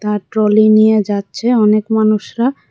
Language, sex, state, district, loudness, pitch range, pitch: Bengali, female, Tripura, West Tripura, -13 LUFS, 210-220 Hz, 215 Hz